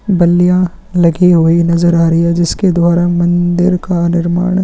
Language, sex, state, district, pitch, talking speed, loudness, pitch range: Hindi, male, Chhattisgarh, Kabirdham, 175 Hz, 155 wpm, -11 LUFS, 170-180 Hz